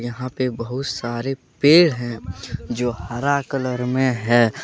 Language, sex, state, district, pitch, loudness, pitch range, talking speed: Hindi, male, Jharkhand, Deoghar, 125 Hz, -21 LUFS, 120-135 Hz, 140 wpm